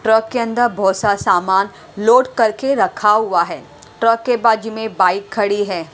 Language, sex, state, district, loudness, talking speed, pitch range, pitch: Hindi, female, Punjab, Pathankot, -16 LUFS, 190 wpm, 200-230 Hz, 220 Hz